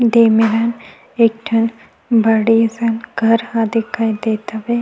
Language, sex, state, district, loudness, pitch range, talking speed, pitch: Chhattisgarhi, female, Chhattisgarh, Sukma, -16 LUFS, 225-230 Hz, 135 wpm, 225 Hz